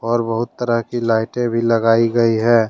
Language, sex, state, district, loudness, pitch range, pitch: Hindi, male, Jharkhand, Deoghar, -17 LUFS, 115-120 Hz, 115 Hz